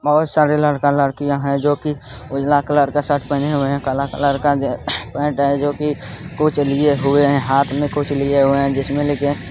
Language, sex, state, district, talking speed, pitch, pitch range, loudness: Hindi, male, Bihar, Supaul, 200 wpm, 145 Hz, 140-145 Hz, -17 LUFS